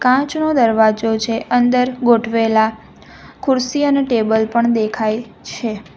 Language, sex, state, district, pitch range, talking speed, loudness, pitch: Gujarati, female, Gujarat, Valsad, 220-250 Hz, 110 wpm, -16 LUFS, 230 Hz